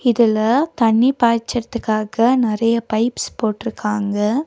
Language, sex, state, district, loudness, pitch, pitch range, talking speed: Tamil, female, Tamil Nadu, Nilgiris, -18 LUFS, 230 Hz, 215-240 Hz, 80 wpm